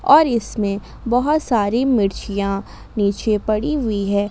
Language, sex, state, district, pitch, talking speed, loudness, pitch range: Hindi, female, Jharkhand, Garhwa, 215 Hz, 125 wpm, -19 LUFS, 200-250 Hz